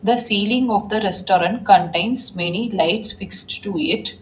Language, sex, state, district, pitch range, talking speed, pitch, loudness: English, female, Telangana, Hyderabad, 190-240 Hz, 155 wpm, 215 Hz, -19 LUFS